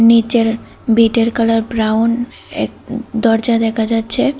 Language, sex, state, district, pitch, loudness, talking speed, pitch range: Bengali, female, Tripura, West Tripura, 230 Hz, -15 LUFS, 110 wpm, 225-235 Hz